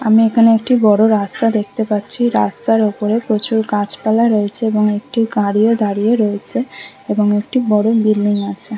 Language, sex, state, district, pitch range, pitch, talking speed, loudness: Bengali, female, West Bengal, Kolkata, 205-225 Hz, 215 Hz, 155 wpm, -15 LUFS